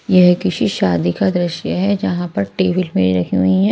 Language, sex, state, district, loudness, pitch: Hindi, female, Punjab, Kapurthala, -16 LUFS, 175 Hz